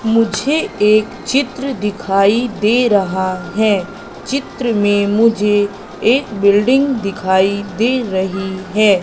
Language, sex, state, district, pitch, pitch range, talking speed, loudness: Hindi, female, Madhya Pradesh, Katni, 210 Hz, 200-235 Hz, 105 wpm, -15 LUFS